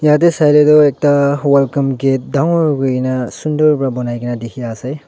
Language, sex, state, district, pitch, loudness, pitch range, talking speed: Nagamese, male, Nagaland, Dimapur, 140 Hz, -14 LUFS, 130-150 Hz, 155 wpm